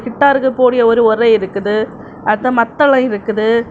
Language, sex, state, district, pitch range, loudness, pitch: Tamil, female, Tamil Nadu, Kanyakumari, 220-255 Hz, -13 LUFS, 235 Hz